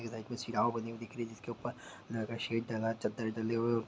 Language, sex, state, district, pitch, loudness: Hindi, male, Bihar, Sitamarhi, 115 Hz, -37 LUFS